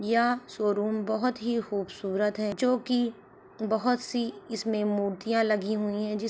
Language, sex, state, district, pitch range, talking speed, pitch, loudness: Hindi, female, Uttar Pradesh, Ghazipur, 210-235 Hz, 160 wpm, 220 Hz, -29 LUFS